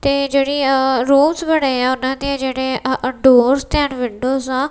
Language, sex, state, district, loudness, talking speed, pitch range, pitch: Punjabi, female, Punjab, Kapurthala, -16 LUFS, 180 wpm, 260-280 Hz, 265 Hz